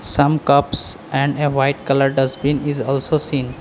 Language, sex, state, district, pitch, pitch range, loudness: English, male, Assam, Kamrup Metropolitan, 140 Hz, 135-145 Hz, -18 LUFS